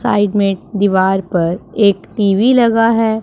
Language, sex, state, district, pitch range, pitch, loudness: Hindi, female, Punjab, Pathankot, 195-225 Hz, 205 Hz, -14 LUFS